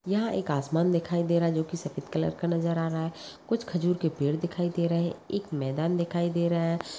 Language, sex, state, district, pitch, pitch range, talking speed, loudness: Hindi, female, Jharkhand, Sahebganj, 170 Hz, 160-175 Hz, 260 wpm, -28 LUFS